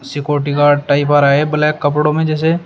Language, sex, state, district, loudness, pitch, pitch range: Hindi, male, Uttar Pradesh, Shamli, -14 LUFS, 145 Hz, 145-150 Hz